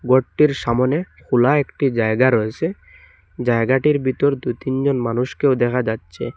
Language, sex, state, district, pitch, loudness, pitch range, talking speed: Bengali, male, Assam, Hailakandi, 130 Hz, -19 LUFS, 120-140 Hz, 130 wpm